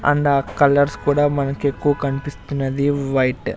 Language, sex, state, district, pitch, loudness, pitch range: Telugu, male, Andhra Pradesh, Sri Satya Sai, 140 Hz, -19 LUFS, 135-145 Hz